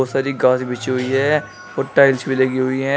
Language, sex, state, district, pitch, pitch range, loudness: Hindi, male, Uttar Pradesh, Shamli, 130 Hz, 130-135 Hz, -18 LUFS